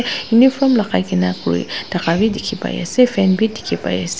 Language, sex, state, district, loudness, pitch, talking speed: Nagamese, female, Nagaland, Dimapur, -17 LUFS, 195 Hz, 170 wpm